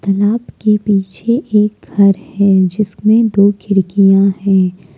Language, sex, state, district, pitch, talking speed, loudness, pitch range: Hindi, female, Jharkhand, Deoghar, 200 Hz, 120 wpm, -13 LUFS, 195-210 Hz